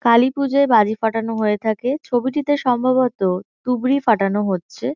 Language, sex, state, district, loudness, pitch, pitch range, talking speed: Bengali, female, West Bengal, Kolkata, -19 LUFS, 240 Hz, 215-260 Hz, 120 wpm